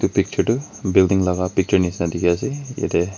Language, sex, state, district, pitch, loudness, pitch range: Nagamese, male, Nagaland, Kohima, 95 Hz, -20 LUFS, 90-105 Hz